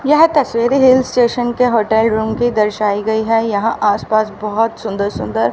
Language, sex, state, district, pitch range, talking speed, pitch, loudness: Hindi, female, Haryana, Rohtak, 210-245 Hz, 185 wpm, 220 Hz, -15 LUFS